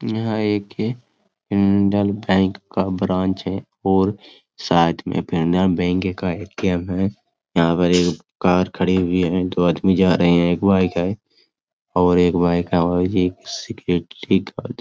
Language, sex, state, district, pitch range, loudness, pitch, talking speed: Hindi, male, Jharkhand, Sahebganj, 90-95 Hz, -19 LUFS, 95 Hz, 160 wpm